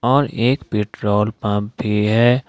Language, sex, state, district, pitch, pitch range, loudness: Hindi, male, Jharkhand, Ranchi, 110 Hz, 105-125 Hz, -19 LUFS